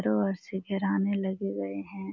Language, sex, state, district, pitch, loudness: Hindi, female, Bihar, Jamui, 190 Hz, -30 LUFS